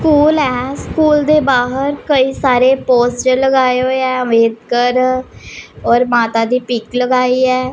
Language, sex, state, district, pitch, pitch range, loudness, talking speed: Hindi, male, Punjab, Pathankot, 255 Hz, 245-270 Hz, -13 LUFS, 140 wpm